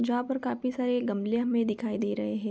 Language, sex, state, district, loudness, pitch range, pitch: Hindi, female, Bihar, Begusarai, -29 LUFS, 210-245 Hz, 235 Hz